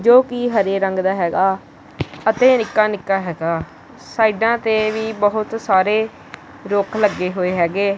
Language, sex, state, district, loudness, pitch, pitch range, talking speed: Punjabi, male, Punjab, Kapurthala, -18 LUFS, 210 Hz, 190-220 Hz, 145 wpm